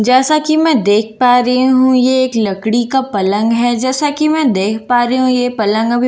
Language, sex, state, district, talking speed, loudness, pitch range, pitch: Hindi, female, Bihar, Katihar, 245 wpm, -13 LUFS, 220-260 Hz, 245 Hz